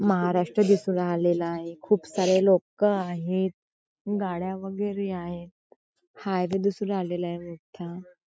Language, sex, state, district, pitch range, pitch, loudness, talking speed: Marathi, female, Maharashtra, Chandrapur, 175-200 Hz, 185 Hz, -26 LUFS, 115 wpm